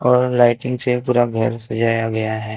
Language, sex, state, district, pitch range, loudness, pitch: Hindi, male, Maharashtra, Gondia, 110-125 Hz, -18 LUFS, 120 Hz